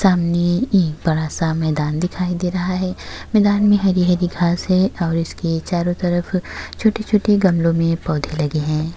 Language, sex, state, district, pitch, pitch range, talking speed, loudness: Hindi, female, Uttar Pradesh, Jyotiba Phule Nagar, 175 Hz, 165-185 Hz, 160 wpm, -18 LUFS